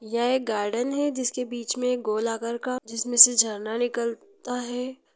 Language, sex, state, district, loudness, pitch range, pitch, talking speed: Hindi, female, Chhattisgarh, Rajnandgaon, -24 LUFS, 230-250 Hz, 240 Hz, 185 wpm